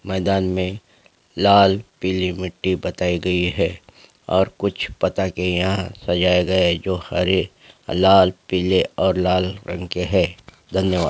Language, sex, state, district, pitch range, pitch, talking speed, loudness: Hindi, male, Chhattisgarh, Bastar, 90-95 Hz, 95 Hz, 140 wpm, -20 LUFS